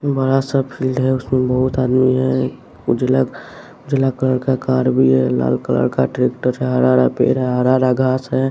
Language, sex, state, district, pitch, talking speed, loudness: Hindi, male, Bihar, West Champaran, 130 Hz, 190 wpm, -17 LUFS